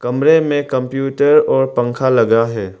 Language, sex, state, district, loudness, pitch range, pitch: Hindi, male, Arunachal Pradesh, Lower Dibang Valley, -14 LUFS, 120-145 Hz, 130 Hz